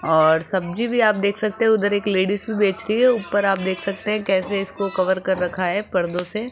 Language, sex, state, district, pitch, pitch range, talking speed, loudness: Hindi, female, Rajasthan, Jaipur, 200 Hz, 185-215 Hz, 250 wpm, -20 LUFS